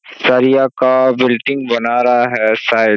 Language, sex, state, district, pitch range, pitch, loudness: Hindi, male, Bihar, Kishanganj, 120-130 Hz, 125 Hz, -13 LUFS